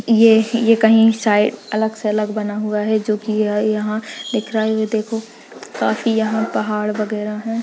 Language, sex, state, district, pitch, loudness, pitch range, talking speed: Hindi, female, Uttarakhand, Tehri Garhwal, 220 Hz, -18 LUFS, 210-225 Hz, 190 wpm